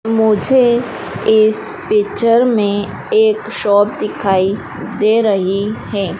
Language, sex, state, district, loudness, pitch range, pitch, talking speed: Hindi, female, Madhya Pradesh, Dhar, -15 LUFS, 205-230 Hz, 215 Hz, 95 wpm